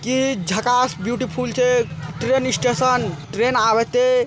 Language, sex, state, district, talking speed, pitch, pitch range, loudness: Hindi, male, Bihar, Araria, 125 wpm, 245 Hz, 225-255 Hz, -19 LUFS